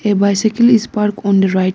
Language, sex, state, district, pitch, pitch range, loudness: English, female, Arunachal Pradesh, Lower Dibang Valley, 205 Hz, 195-220 Hz, -14 LUFS